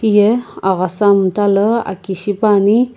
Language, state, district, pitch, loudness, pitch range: Sumi, Nagaland, Kohima, 205 Hz, -14 LUFS, 195-215 Hz